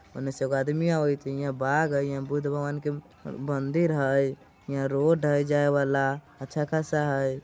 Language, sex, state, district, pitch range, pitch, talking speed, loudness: Bajjika, male, Bihar, Vaishali, 135-150 Hz, 140 Hz, 195 wpm, -27 LUFS